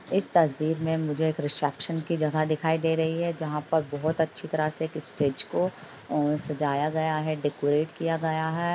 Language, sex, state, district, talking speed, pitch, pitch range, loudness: Hindi, female, Uttar Pradesh, Hamirpur, 185 wpm, 155 Hz, 150-160 Hz, -27 LUFS